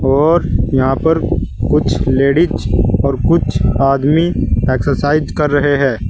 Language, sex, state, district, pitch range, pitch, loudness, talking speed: Hindi, male, Uttar Pradesh, Saharanpur, 115-150 Hz, 135 Hz, -14 LUFS, 120 wpm